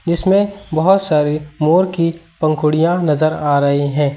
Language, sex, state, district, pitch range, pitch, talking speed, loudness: Hindi, male, Uttar Pradesh, Lucknow, 150-170 Hz, 155 Hz, 145 wpm, -15 LUFS